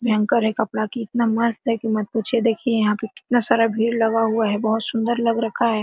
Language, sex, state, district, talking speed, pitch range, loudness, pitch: Hindi, female, Bihar, Araria, 245 wpm, 220-235 Hz, -21 LUFS, 225 Hz